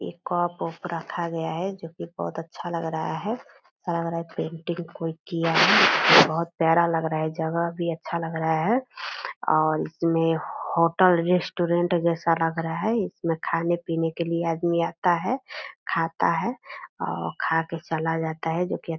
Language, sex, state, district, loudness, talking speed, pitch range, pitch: Hindi, female, Bihar, Purnia, -25 LUFS, 175 wpm, 165-175 Hz, 165 Hz